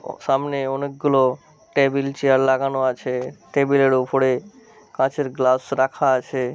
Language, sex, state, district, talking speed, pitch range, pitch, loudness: Bengali, male, West Bengal, Malda, 130 wpm, 130-140 Hz, 135 Hz, -20 LUFS